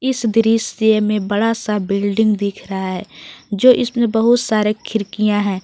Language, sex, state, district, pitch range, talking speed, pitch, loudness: Hindi, female, Jharkhand, Garhwa, 205-225 Hz, 160 wpm, 215 Hz, -17 LUFS